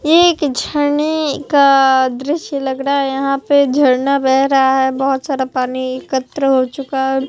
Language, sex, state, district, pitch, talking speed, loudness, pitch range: Hindi, female, Bihar, Katihar, 275 Hz, 165 wpm, -15 LUFS, 265-285 Hz